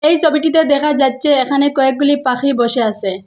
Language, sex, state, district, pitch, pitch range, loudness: Bengali, female, Assam, Hailakandi, 280 Hz, 255-295 Hz, -14 LUFS